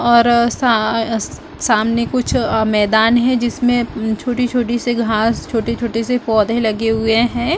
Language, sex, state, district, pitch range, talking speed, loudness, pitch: Hindi, female, Chhattisgarh, Bastar, 225-240 Hz, 140 wpm, -16 LUFS, 235 Hz